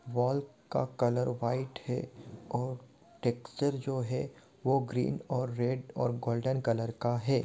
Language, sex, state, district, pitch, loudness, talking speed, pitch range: Hindi, male, Bihar, Saran, 125 Hz, -33 LUFS, 160 wpm, 120-130 Hz